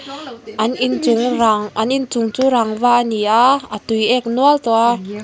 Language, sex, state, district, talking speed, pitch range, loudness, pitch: Mizo, female, Mizoram, Aizawl, 185 wpm, 220-255 Hz, -16 LUFS, 235 Hz